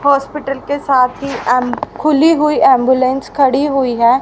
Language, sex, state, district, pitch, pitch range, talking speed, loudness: Hindi, female, Haryana, Rohtak, 275 Hz, 255-285 Hz, 155 wpm, -14 LUFS